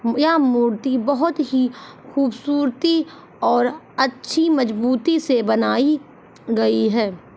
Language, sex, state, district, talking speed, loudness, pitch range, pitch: Hindi, female, Jharkhand, Jamtara, 100 wpm, -19 LUFS, 235-290 Hz, 260 Hz